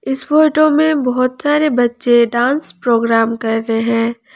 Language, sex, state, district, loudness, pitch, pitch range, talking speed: Hindi, female, Jharkhand, Palamu, -14 LUFS, 250 Hz, 230-295 Hz, 150 wpm